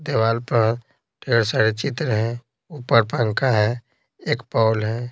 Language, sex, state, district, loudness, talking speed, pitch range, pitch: Hindi, male, Bihar, Patna, -21 LUFS, 140 wpm, 110-130 Hz, 115 Hz